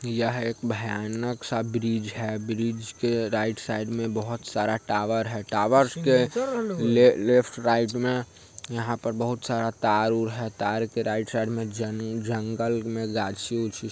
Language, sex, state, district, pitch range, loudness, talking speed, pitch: Hindi, male, Bihar, Sitamarhi, 110-120 Hz, -26 LUFS, 160 wpm, 115 Hz